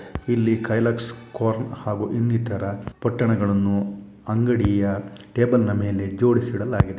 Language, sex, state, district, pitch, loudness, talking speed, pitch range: Kannada, male, Karnataka, Shimoga, 110 Hz, -23 LUFS, 110 wpm, 100-120 Hz